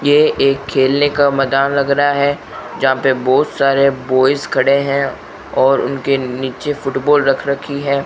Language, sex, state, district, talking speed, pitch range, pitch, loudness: Hindi, male, Rajasthan, Bikaner, 165 wpm, 135-140 Hz, 140 Hz, -15 LUFS